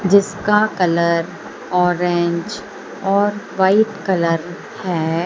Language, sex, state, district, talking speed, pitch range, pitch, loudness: Hindi, female, Madhya Pradesh, Umaria, 80 wpm, 170-205 Hz, 185 Hz, -18 LUFS